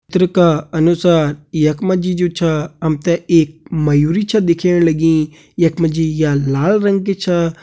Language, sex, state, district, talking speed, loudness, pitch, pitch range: Hindi, male, Uttarakhand, Uttarkashi, 180 wpm, -15 LUFS, 165 Hz, 155-180 Hz